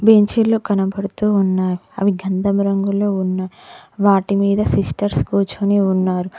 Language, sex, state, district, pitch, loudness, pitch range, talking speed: Telugu, female, Telangana, Mahabubabad, 200 Hz, -17 LUFS, 185-205 Hz, 110 wpm